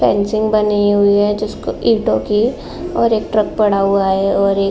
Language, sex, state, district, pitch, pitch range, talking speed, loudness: Hindi, female, Uttar Pradesh, Jalaun, 210 Hz, 200-215 Hz, 205 wpm, -15 LUFS